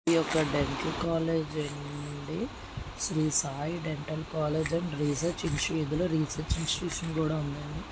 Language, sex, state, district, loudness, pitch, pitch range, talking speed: Telugu, male, Andhra Pradesh, Srikakulam, -31 LUFS, 155 Hz, 150-165 Hz, 115 wpm